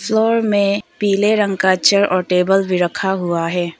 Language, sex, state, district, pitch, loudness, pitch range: Hindi, female, Arunachal Pradesh, Papum Pare, 195 Hz, -16 LUFS, 180-205 Hz